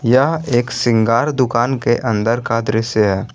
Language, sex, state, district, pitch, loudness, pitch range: Hindi, male, Jharkhand, Garhwa, 120 Hz, -16 LUFS, 115-125 Hz